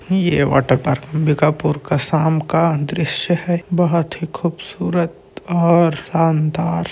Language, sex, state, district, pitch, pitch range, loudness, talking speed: Chhattisgarhi, male, Chhattisgarh, Sarguja, 160 Hz, 150-170 Hz, -18 LUFS, 115 wpm